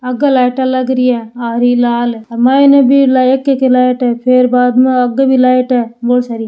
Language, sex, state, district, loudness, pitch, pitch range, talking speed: Hindi, female, Rajasthan, Churu, -11 LUFS, 250 Hz, 245-260 Hz, 205 wpm